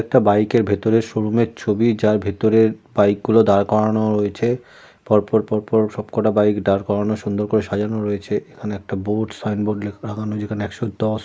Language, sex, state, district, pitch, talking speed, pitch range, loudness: Bengali, male, West Bengal, Jalpaiguri, 105 Hz, 185 wpm, 105-110 Hz, -19 LUFS